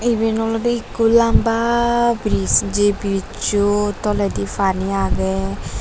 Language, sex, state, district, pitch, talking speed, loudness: Chakma, female, Tripura, Dhalai, 205 Hz, 105 wpm, -18 LUFS